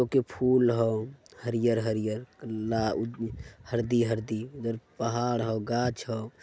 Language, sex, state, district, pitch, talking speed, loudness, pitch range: Magahi, male, Bihar, Jamui, 115 Hz, 110 wpm, -29 LUFS, 110-120 Hz